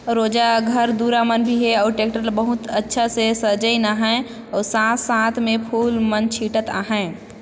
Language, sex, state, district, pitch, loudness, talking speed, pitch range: Chhattisgarhi, female, Chhattisgarh, Sarguja, 225 Hz, -19 LUFS, 170 wpm, 220-235 Hz